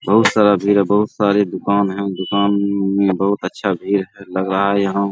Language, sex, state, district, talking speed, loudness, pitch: Hindi, male, Bihar, Araria, 200 wpm, -17 LUFS, 100 Hz